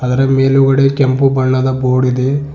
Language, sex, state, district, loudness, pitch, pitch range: Kannada, male, Karnataka, Bidar, -12 LUFS, 135 Hz, 130-135 Hz